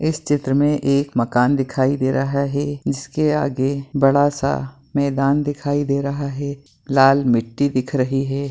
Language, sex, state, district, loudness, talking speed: Hindi, male, West Bengal, Purulia, -19 LUFS, 160 wpm